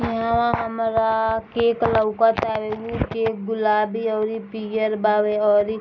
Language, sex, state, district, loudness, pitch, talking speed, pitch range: Bhojpuri, female, Bihar, East Champaran, -21 LUFS, 220 Hz, 155 wpm, 215-225 Hz